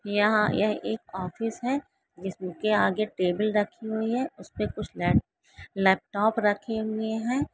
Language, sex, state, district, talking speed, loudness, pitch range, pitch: Hindi, female, Karnataka, Belgaum, 145 wpm, -27 LUFS, 200-225 Hz, 215 Hz